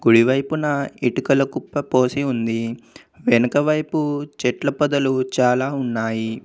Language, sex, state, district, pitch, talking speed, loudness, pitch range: Telugu, male, Telangana, Komaram Bheem, 130 Hz, 100 wpm, -20 LUFS, 120-145 Hz